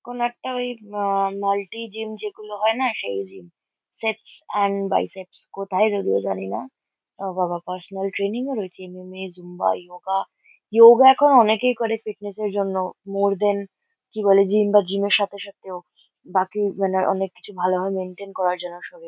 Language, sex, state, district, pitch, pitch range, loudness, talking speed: Bengali, female, West Bengal, Kolkata, 200 Hz, 185-215 Hz, -21 LUFS, 175 wpm